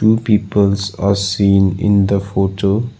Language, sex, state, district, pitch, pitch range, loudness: English, male, Assam, Sonitpur, 100 Hz, 100-105 Hz, -15 LUFS